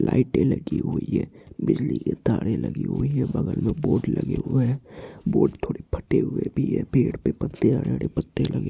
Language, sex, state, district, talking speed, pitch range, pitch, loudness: Hindi, male, Bihar, Purnia, 195 wpm, 130-165 Hz, 135 Hz, -24 LUFS